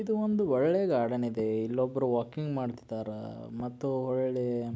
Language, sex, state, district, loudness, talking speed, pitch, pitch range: Kannada, male, Karnataka, Belgaum, -31 LUFS, 150 wpm, 125 Hz, 115-135 Hz